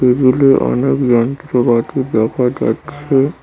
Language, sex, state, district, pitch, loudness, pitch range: Bengali, male, West Bengal, Cooch Behar, 130 Hz, -14 LUFS, 115-135 Hz